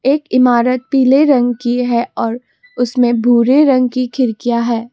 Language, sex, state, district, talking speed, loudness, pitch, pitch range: Hindi, female, Assam, Kamrup Metropolitan, 160 wpm, -13 LUFS, 245 Hz, 240-260 Hz